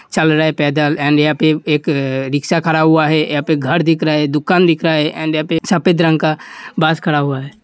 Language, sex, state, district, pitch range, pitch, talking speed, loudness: Hindi, male, Uttar Pradesh, Hamirpur, 150-165 Hz, 155 Hz, 245 wpm, -14 LUFS